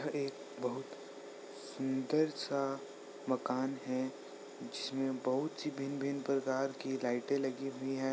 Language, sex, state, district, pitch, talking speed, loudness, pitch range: Hindi, male, Uttar Pradesh, Ghazipur, 135 Hz, 125 wpm, -37 LUFS, 130-140 Hz